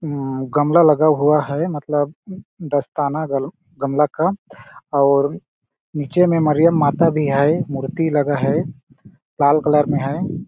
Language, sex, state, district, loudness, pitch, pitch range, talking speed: Hindi, male, Chhattisgarh, Balrampur, -18 LUFS, 150 Hz, 140-165 Hz, 155 wpm